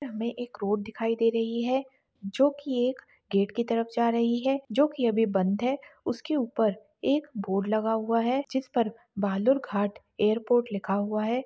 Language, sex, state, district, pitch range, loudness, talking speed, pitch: Hindi, female, Maharashtra, Dhule, 210-260 Hz, -28 LUFS, 170 wpm, 230 Hz